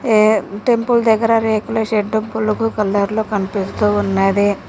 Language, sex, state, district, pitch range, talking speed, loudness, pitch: Telugu, female, Telangana, Mahabubabad, 205-225 Hz, 115 wpm, -16 LUFS, 215 Hz